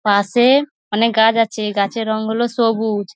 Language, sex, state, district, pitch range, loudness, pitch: Bengali, female, West Bengal, North 24 Parganas, 210-235 Hz, -16 LUFS, 220 Hz